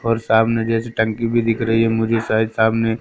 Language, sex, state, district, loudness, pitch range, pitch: Hindi, male, Madhya Pradesh, Katni, -18 LUFS, 110-115 Hz, 115 Hz